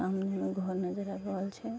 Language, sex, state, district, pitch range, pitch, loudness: Maithili, female, Bihar, Vaishali, 190-200 Hz, 190 Hz, -35 LUFS